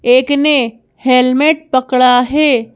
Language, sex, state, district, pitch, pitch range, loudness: Hindi, female, Madhya Pradesh, Bhopal, 255 Hz, 250-285 Hz, -11 LUFS